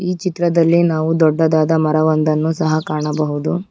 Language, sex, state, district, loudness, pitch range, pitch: Kannada, female, Karnataka, Bangalore, -16 LUFS, 155-170 Hz, 160 Hz